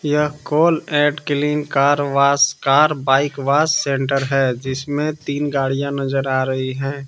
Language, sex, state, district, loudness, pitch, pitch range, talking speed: Hindi, male, Jharkhand, Palamu, -18 LUFS, 140 Hz, 135-150 Hz, 155 wpm